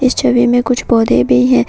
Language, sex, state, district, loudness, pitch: Hindi, female, Assam, Kamrup Metropolitan, -12 LUFS, 235 Hz